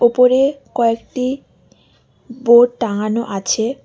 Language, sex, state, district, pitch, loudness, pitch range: Bengali, female, West Bengal, Alipurduar, 240 Hz, -16 LUFS, 230-255 Hz